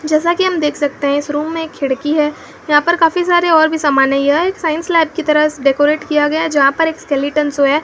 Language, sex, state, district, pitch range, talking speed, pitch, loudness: Hindi, female, Rajasthan, Bikaner, 290-325 Hz, 270 wpm, 300 Hz, -14 LUFS